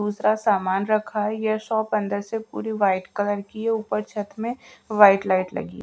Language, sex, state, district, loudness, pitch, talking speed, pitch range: Hindi, female, Maharashtra, Gondia, -23 LUFS, 210 Hz, 195 wpm, 200-220 Hz